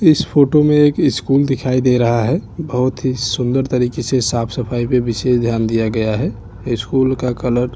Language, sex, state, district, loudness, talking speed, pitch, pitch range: Hindi, male, Chhattisgarh, Bastar, -16 LUFS, 200 wpm, 125 Hz, 120-135 Hz